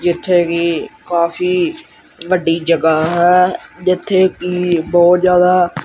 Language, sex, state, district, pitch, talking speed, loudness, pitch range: Punjabi, male, Punjab, Kapurthala, 175 Hz, 105 wpm, -14 LUFS, 170-180 Hz